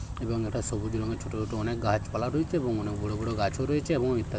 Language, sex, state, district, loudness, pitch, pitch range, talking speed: Bengali, male, West Bengal, Paschim Medinipur, -30 LUFS, 115 Hz, 110-125 Hz, 245 wpm